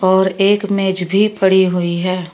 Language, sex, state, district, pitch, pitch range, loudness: Hindi, female, Uttar Pradesh, Shamli, 190 Hz, 185-195 Hz, -15 LUFS